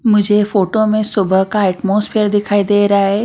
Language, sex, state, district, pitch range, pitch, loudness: Hindi, female, Maharashtra, Washim, 200-210 Hz, 205 Hz, -14 LUFS